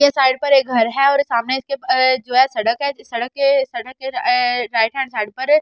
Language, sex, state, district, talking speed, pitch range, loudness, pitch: Hindi, female, Delhi, New Delhi, 245 wpm, 250-280 Hz, -17 LUFS, 265 Hz